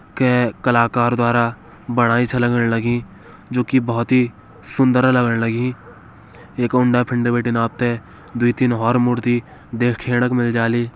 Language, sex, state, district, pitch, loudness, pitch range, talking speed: Kumaoni, male, Uttarakhand, Uttarkashi, 120 Hz, -18 LUFS, 115-125 Hz, 140 wpm